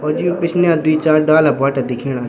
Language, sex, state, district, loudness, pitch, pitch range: Garhwali, male, Uttarakhand, Tehri Garhwal, -15 LUFS, 155 Hz, 135-165 Hz